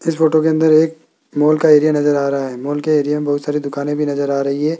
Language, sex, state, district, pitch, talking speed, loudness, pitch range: Hindi, male, Rajasthan, Jaipur, 150 Hz, 300 wpm, -16 LUFS, 145-155 Hz